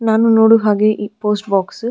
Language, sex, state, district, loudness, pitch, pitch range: Kannada, female, Karnataka, Dharwad, -14 LUFS, 215 Hz, 210-225 Hz